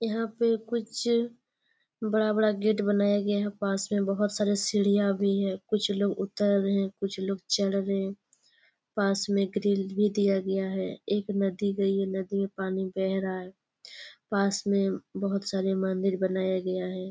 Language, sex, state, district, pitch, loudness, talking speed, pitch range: Hindi, female, Chhattisgarh, Bastar, 200 Hz, -28 LUFS, 180 wpm, 195-205 Hz